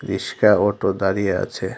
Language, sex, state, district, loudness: Bengali, male, Tripura, Dhalai, -19 LUFS